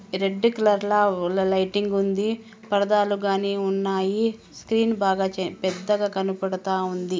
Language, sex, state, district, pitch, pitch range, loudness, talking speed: Telugu, female, Andhra Pradesh, Anantapur, 195 Hz, 190-210 Hz, -23 LUFS, 115 wpm